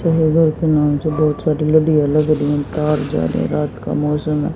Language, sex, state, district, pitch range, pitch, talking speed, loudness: Hindi, female, Haryana, Jhajjar, 150-155 Hz, 150 Hz, 185 wpm, -17 LUFS